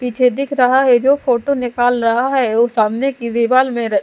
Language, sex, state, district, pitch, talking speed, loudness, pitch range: Hindi, female, Bihar, Katihar, 245 Hz, 210 wpm, -15 LUFS, 235-265 Hz